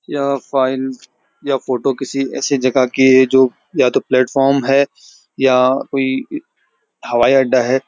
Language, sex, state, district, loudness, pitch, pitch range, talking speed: Hindi, male, Uttarakhand, Uttarkashi, -15 LUFS, 130 Hz, 130-135 Hz, 145 wpm